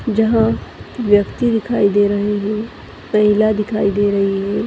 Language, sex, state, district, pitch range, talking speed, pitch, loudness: Kumaoni, female, Uttarakhand, Tehri Garhwal, 200-215 Hz, 140 wpm, 210 Hz, -16 LUFS